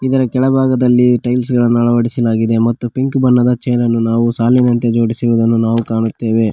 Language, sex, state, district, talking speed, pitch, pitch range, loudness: Kannada, male, Karnataka, Koppal, 130 wpm, 120 Hz, 115-125 Hz, -13 LUFS